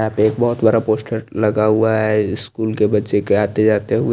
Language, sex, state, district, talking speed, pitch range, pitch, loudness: Hindi, male, Chandigarh, Chandigarh, 230 wpm, 105-110 Hz, 110 Hz, -17 LUFS